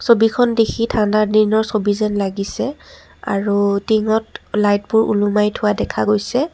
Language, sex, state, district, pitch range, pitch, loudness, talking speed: Assamese, female, Assam, Kamrup Metropolitan, 205-225 Hz, 215 Hz, -17 LUFS, 130 wpm